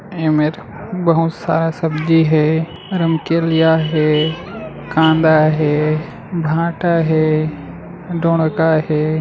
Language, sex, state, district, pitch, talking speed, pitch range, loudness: Chhattisgarhi, male, Chhattisgarh, Raigarh, 160 Hz, 85 wpm, 155-165 Hz, -16 LUFS